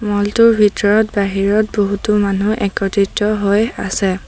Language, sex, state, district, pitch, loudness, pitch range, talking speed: Assamese, female, Assam, Sonitpur, 205 Hz, -15 LUFS, 200-215 Hz, 125 wpm